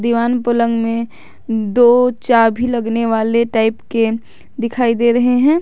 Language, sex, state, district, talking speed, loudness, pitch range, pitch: Hindi, female, Jharkhand, Garhwa, 140 wpm, -15 LUFS, 230-240 Hz, 235 Hz